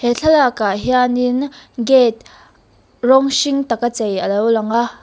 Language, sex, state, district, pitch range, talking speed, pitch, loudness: Mizo, female, Mizoram, Aizawl, 230-265 Hz, 155 wpm, 245 Hz, -16 LUFS